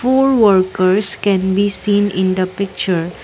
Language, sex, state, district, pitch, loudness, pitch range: English, female, Assam, Kamrup Metropolitan, 195 Hz, -14 LUFS, 185-205 Hz